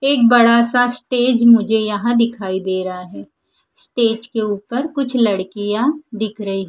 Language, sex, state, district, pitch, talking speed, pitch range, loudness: Hindi, female, Punjab, Fazilka, 230 Hz, 150 wpm, 205-245 Hz, -16 LUFS